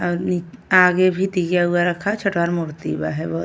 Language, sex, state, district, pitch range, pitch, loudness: Bhojpuri, female, Uttar Pradesh, Ghazipur, 170-185 Hz, 175 Hz, -19 LUFS